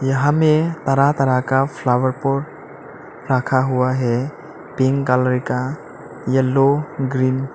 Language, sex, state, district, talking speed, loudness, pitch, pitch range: Hindi, male, Arunachal Pradesh, Lower Dibang Valley, 125 wpm, -18 LUFS, 130 Hz, 130-140 Hz